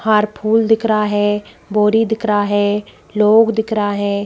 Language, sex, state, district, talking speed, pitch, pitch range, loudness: Hindi, female, Madhya Pradesh, Bhopal, 185 wpm, 210 Hz, 205-220 Hz, -16 LUFS